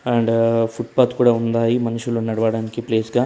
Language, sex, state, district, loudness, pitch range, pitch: Telugu, male, Telangana, Hyderabad, -19 LUFS, 115-120 Hz, 115 Hz